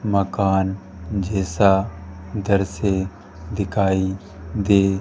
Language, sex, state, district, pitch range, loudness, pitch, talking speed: Hindi, male, Rajasthan, Jaipur, 95-100 Hz, -21 LUFS, 95 Hz, 60 wpm